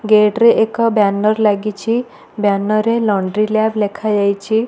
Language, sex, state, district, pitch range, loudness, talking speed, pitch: Odia, female, Odisha, Malkangiri, 205-220 Hz, -15 LUFS, 130 wpm, 215 Hz